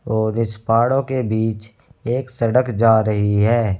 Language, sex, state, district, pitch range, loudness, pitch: Hindi, male, Uttar Pradesh, Saharanpur, 110-125 Hz, -18 LUFS, 115 Hz